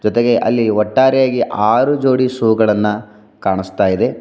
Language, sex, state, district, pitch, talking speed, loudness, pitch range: Kannada, male, Karnataka, Bidar, 110 Hz, 130 wpm, -15 LUFS, 105-130 Hz